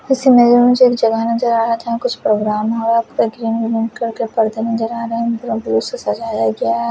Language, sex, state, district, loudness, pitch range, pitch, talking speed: Hindi, male, Odisha, Khordha, -16 LUFS, 225-235 Hz, 230 Hz, 150 wpm